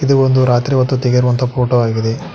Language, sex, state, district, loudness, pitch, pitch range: Kannada, male, Karnataka, Koppal, -14 LUFS, 125 Hz, 120-130 Hz